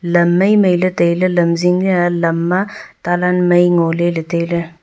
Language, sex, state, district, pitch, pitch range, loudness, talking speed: Wancho, female, Arunachal Pradesh, Longding, 175 Hz, 170-180 Hz, -14 LUFS, 225 wpm